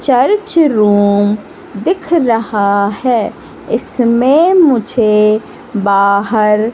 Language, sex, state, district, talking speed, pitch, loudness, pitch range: Hindi, female, Madhya Pradesh, Katni, 70 wpm, 225 Hz, -12 LUFS, 205-285 Hz